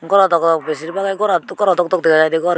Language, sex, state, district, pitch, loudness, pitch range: Chakma, female, Tripura, Unakoti, 175 Hz, -15 LUFS, 160-195 Hz